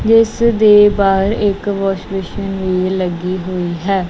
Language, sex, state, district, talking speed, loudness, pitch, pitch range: Punjabi, female, Punjab, Kapurthala, 145 wpm, -15 LUFS, 195 Hz, 185-205 Hz